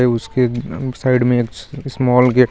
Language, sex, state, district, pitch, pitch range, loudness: Hindi, female, Jharkhand, Garhwa, 125 Hz, 120-130 Hz, -17 LUFS